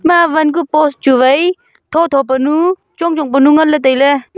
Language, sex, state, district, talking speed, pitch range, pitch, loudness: Wancho, female, Arunachal Pradesh, Longding, 190 wpm, 275-340 Hz, 305 Hz, -12 LUFS